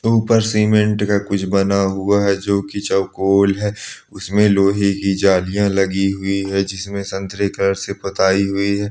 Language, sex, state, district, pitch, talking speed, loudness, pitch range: Hindi, male, Andhra Pradesh, Srikakulam, 100 Hz, 175 wpm, -17 LUFS, 95-100 Hz